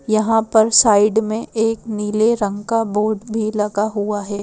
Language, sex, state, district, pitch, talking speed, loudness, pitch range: Hindi, female, Madhya Pradesh, Bhopal, 215 Hz, 175 wpm, -17 LUFS, 210-225 Hz